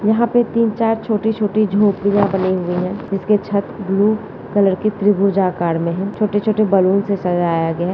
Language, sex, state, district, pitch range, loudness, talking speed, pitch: Hindi, female, Bihar, Purnia, 190-215 Hz, -17 LUFS, 220 wpm, 200 Hz